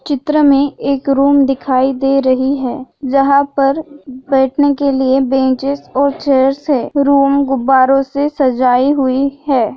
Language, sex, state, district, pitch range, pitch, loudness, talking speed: Hindi, female, Chhattisgarh, Raigarh, 265-280 Hz, 275 Hz, -13 LUFS, 140 wpm